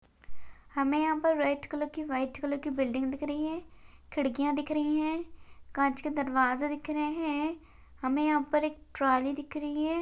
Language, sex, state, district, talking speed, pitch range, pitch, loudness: Hindi, female, Maharashtra, Sindhudurg, 185 wpm, 275-305 Hz, 295 Hz, -31 LUFS